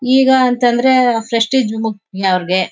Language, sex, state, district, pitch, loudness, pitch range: Kannada, female, Karnataka, Mysore, 235 Hz, -14 LUFS, 210-255 Hz